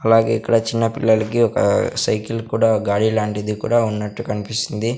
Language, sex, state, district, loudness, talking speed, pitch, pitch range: Telugu, male, Andhra Pradesh, Sri Satya Sai, -19 LUFS, 145 wpm, 110 Hz, 105-115 Hz